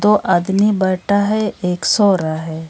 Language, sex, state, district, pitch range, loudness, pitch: Hindi, female, Bihar, Darbhanga, 175-210 Hz, -16 LUFS, 195 Hz